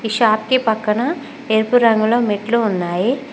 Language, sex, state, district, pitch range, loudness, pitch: Telugu, female, Telangana, Mahabubabad, 215-250 Hz, -17 LUFS, 225 Hz